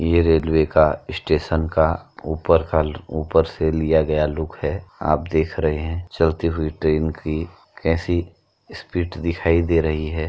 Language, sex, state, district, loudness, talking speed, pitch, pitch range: Hindi, male, Uttar Pradesh, Jyotiba Phule Nagar, -21 LUFS, 155 wpm, 80 Hz, 80-85 Hz